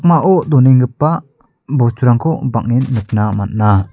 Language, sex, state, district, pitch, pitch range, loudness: Garo, male, Meghalaya, South Garo Hills, 125 Hz, 115-155 Hz, -14 LUFS